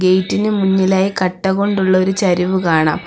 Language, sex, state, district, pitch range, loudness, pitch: Malayalam, female, Kerala, Kollam, 185-195 Hz, -15 LUFS, 190 Hz